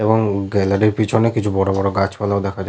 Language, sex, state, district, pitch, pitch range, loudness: Bengali, male, Jharkhand, Sahebganj, 100 Hz, 95-105 Hz, -18 LUFS